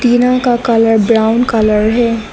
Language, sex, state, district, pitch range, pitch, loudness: Hindi, female, Arunachal Pradesh, Lower Dibang Valley, 220-245 Hz, 230 Hz, -11 LUFS